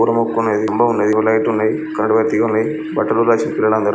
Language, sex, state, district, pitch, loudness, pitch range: Telugu, male, Andhra Pradesh, Srikakulam, 110 Hz, -16 LUFS, 110-115 Hz